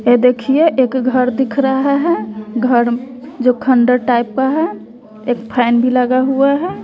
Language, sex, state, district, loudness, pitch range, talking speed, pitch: Hindi, female, Bihar, West Champaran, -14 LUFS, 240-265 Hz, 165 wpm, 250 Hz